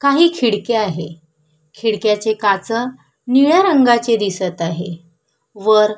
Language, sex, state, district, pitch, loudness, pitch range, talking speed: Marathi, female, Maharashtra, Solapur, 215 Hz, -16 LUFS, 170-240 Hz, 100 wpm